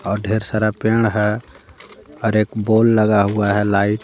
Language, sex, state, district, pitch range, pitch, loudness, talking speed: Hindi, female, Jharkhand, Garhwa, 105-110 Hz, 105 Hz, -17 LUFS, 195 wpm